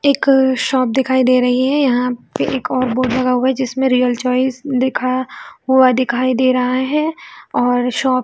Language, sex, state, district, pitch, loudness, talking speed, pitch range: Hindi, female, Chhattisgarh, Bilaspur, 255 Hz, -16 LUFS, 190 wpm, 250-265 Hz